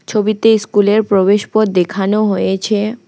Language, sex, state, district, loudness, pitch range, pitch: Bengali, female, West Bengal, Alipurduar, -14 LUFS, 200-215 Hz, 210 Hz